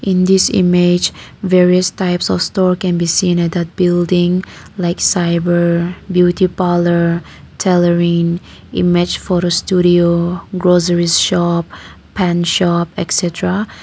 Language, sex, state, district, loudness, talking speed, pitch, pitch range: English, female, Nagaland, Kohima, -14 LUFS, 115 wpm, 175 Hz, 175-185 Hz